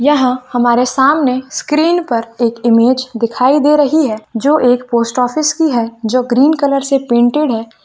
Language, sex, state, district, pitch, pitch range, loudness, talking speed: Hindi, female, Chhattisgarh, Bilaspur, 255 Hz, 235-290 Hz, -13 LUFS, 175 wpm